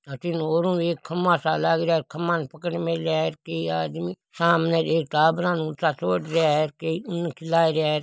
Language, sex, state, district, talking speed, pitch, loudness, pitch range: Marwari, male, Rajasthan, Nagaur, 210 wpm, 160 Hz, -24 LUFS, 155-170 Hz